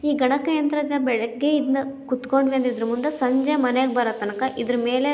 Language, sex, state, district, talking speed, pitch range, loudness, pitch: Kannada, female, Karnataka, Belgaum, 165 wpm, 245-285 Hz, -22 LUFS, 265 Hz